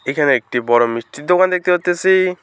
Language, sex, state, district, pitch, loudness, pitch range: Bengali, male, West Bengal, Alipurduar, 180 Hz, -16 LUFS, 120-185 Hz